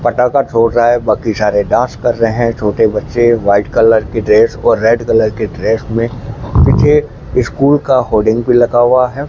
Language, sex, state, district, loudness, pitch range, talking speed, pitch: Hindi, male, Rajasthan, Bikaner, -12 LUFS, 115-125 Hz, 195 wpm, 120 Hz